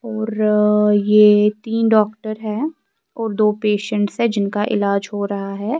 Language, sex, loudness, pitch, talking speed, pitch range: Urdu, female, -18 LUFS, 210 Hz, 145 wpm, 205-220 Hz